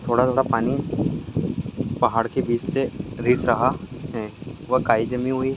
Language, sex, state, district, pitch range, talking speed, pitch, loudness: Hindi, male, Andhra Pradesh, Krishna, 120-130 Hz, 150 wpm, 125 Hz, -23 LUFS